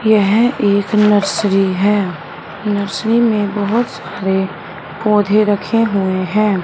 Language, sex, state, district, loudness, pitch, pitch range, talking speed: Hindi, male, Punjab, Fazilka, -15 LUFS, 205 Hz, 195-215 Hz, 110 wpm